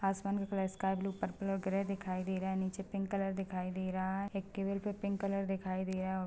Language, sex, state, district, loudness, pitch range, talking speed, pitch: Hindi, female, Chhattisgarh, Balrampur, -37 LUFS, 190-195 Hz, 270 wpm, 195 Hz